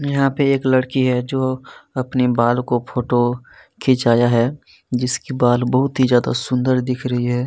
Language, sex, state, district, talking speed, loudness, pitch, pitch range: Hindi, male, Chhattisgarh, Kabirdham, 170 wpm, -18 LUFS, 125 Hz, 120-130 Hz